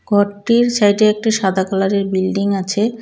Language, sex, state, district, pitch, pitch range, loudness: Bengali, female, West Bengal, Cooch Behar, 205 Hz, 195-215 Hz, -16 LUFS